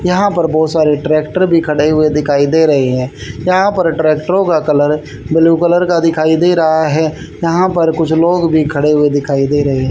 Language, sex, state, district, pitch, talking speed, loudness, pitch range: Hindi, male, Haryana, Charkhi Dadri, 160 Hz, 205 wpm, -12 LUFS, 150-170 Hz